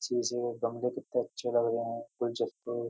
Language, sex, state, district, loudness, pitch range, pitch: Hindi, male, Uttar Pradesh, Jyotiba Phule Nagar, -33 LUFS, 115-120 Hz, 120 Hz